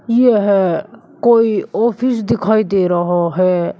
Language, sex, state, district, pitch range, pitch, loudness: Hindi, male, Uttar Pradesh, Shamli, 180-230 Hz, 215 Hz, -15 LUFS